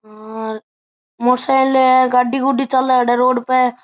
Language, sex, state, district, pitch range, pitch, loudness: Marwari, male, Rajasthan, Churu, 240-260 Hz, 250 Hz, -15 LUFS